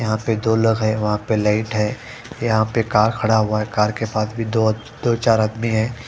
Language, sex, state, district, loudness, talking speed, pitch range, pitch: Hindi, female, Punjab, Fazilka, -19 LUFS, 235 wpm, 110-115 Hz, 110 Hz